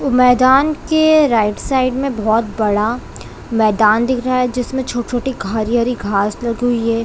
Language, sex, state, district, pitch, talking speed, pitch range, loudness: Hindi, female, Chhattisgarh, Raigarh, 245 Hz, 145 wpm, 220-255 Hz, -15 LUFS